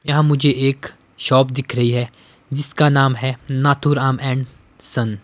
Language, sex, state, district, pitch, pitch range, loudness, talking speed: Hindi, male, Himachal Pradesh, Shimla, 135 Hz, 125-145 Hz, -18 LUFS, 150 wpm